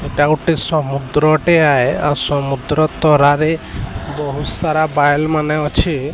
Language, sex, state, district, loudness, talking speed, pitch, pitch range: Odia, male, Odisha, Sambalpur, -15 LUFS, 125 wpm, 150 Hz, 145-155 Hz